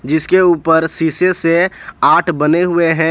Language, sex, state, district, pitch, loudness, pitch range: Hindi, male, Jharkhand, Ranchi, 165 Hz, -13 LUFS, 160-180 Hz